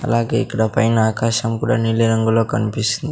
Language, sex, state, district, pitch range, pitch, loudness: Telugu, male, Andhra Pradesh, Sri Satya Sai, 110-115 Hz, 115 Hz, -18 LUFS